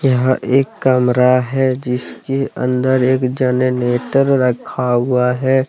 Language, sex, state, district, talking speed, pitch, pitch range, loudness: Hindi, male, Jharkhand, Deoghar, 115 wpm, 130 Hz, 125-130 Hz, -16 LUFS